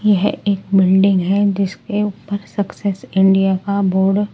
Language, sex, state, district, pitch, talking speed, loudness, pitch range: Hindi, male, Delhi, New Delhi, 200 Hz, 150 wpm, -17 LUFS, 190-205 Hz